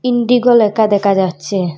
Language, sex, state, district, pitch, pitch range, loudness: Bengali, female, Assam, Hailakandi, 205 Hz, 190-240 Hz, -13 LUFS